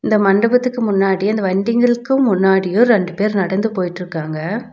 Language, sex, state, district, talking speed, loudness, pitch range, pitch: Tamil, female, Tamil Nadu, Nilgiris, 125 wpm, -16 LUFS, 190-235 Hz, 205 Hz